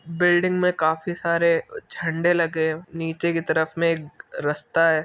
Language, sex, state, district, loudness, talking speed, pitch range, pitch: Hindi, male, Uttar Pradesh, Etah, -23 LUFS, 155 wpm, 160-170 Hz, 165 Hz